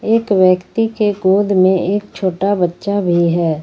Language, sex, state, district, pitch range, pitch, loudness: Hindi, female, Jharkhand, Ranchi, 180-205 Hz, 190 Hz, -15 LUFS